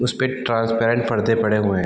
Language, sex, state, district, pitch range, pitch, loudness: Hindi, male, Bihar, Gopalganj, 105-120 Hz, 115 Hz, -20 LUFS